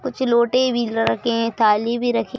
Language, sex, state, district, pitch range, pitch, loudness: Hindi, male, Madhya Pradesh, Bhopal, 230-250 Hz, 235 Hz, -19 LUFS